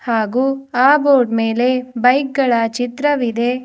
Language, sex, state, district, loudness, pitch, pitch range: Kannada, female, Karnataka, Bidar, -16 LUFS, 250 Hz, 235-270 Hz